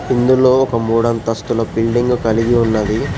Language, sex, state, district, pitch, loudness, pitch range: Telugu, male, Telangana, Hyderabad, 115 Hz, -15 LUFS, 115-125 Hz